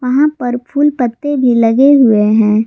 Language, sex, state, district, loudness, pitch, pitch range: Hindi, female, Jharkhand, Garhwa, -11 LUFS, 250 Hz, 230-285 Hz